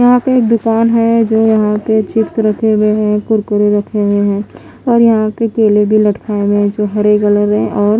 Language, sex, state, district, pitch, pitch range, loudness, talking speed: Hindi, female, Odisha, Khordha, 215 Hz, 210-225 Hz, -12 LUFS, 225 wpm